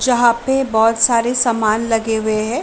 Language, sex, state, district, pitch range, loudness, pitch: Hindi, female, Bihar, Saran, 220-240 Hz, -15 LUFS, 230 Hz